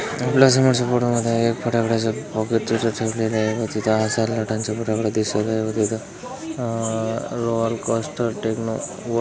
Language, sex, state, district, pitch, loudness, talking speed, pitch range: Marathi, male, Maharashtra, Dhule, 115 Hz, -21 LUFS, 145 wpm, 110-115 Hz